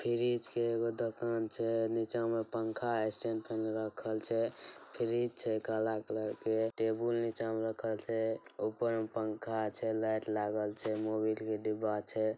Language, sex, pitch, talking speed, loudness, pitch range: Angika, male, 110 Hz, 160 wpm, -36 LUFS, 110-115 Hz